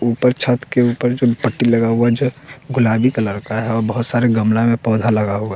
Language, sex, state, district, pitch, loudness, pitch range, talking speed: Hindi, male, Bihar, West Champaran, 120 Hz, -16 LUFS, 110-125 Hz, 225 wpm